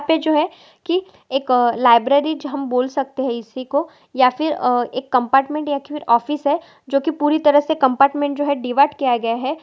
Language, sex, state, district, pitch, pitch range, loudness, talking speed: Hindi, female, Goa, North and South Goa, 280 Hz, 255-300 Hz, -18 LUFS, 200 wpm